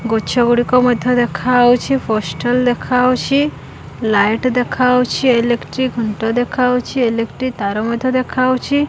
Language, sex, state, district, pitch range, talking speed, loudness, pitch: Odia, female, Odisha, Khordha, 235-255 Hz, 110 wpm, -15 LUFS, 245 Hz